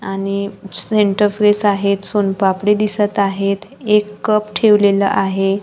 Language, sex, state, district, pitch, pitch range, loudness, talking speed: Marathi, female, Maharashtra, Gondia, 205 Hz, 195-210 Hz, -16 LUFS, 115 wpm